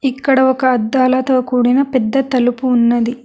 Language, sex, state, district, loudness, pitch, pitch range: Telugu, female, Telangana, Hyderabad, -14 LUFS, 255 Hz, 245-265 Hz